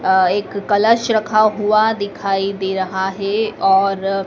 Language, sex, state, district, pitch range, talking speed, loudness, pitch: Hindi, female, Madhya Pradesh, Dhar, 195-215 Hz, 125 wpm, -17 LUFS, 200 Hz